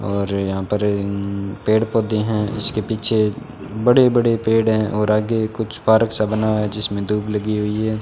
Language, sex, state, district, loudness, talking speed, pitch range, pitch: Hindi, male, Rajasthan, Bikaner, -19 LUFS, 170 wpm, 105-110 Hz, 110 Hz